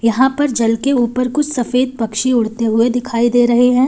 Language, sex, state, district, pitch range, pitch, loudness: Hindi, female, Uttar Pradesh, Lalitpur, 230-260 Hz, 245 Hz, -15 LUFS